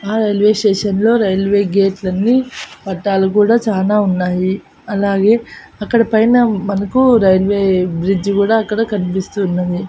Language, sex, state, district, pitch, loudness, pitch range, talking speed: Telugu, female, Andhra Pradesh, Annamaya, 200 Hz, -14 LUFS, 190-220 Hz, 125 wpm